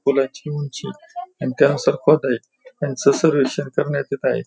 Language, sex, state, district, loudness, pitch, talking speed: Marathi, male, Maharashtra, Pune, -20 LUFS, 150 Hz, 120 wpm